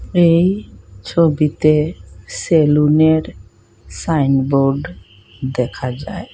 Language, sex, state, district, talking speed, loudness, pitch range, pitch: Bengali, female, Assam, Hailakandi, 55 wpm, -16 LUFS, 110-155 Hz, 140 Hz